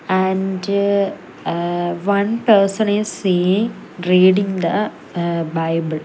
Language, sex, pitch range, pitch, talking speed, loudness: English, female, 175-200 Hz, 190 Hz, 100 wpm, -18 LUFS